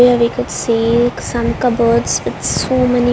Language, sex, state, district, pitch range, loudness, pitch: English, female, Haryana, Rohtak, 235-245 Hz, -15 LUFS, 240 Hz